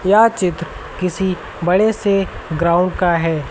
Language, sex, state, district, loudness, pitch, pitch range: Hindi, male, Uttar Pradesh, Lucknow, -17 LUFS, 180 Hz, 170-195 Hz